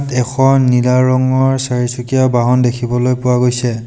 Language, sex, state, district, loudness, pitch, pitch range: Assamese, male, Assam, Sonitpur, -13 LUFS, 125 Hz, 125-130 Hz